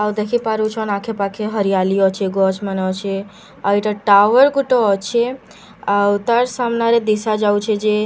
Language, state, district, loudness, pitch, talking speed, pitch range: Sambalpuri, Odisha, Sambalpur, -17 LUFS, 210 Hz, 170 wpm, 200-225 Hz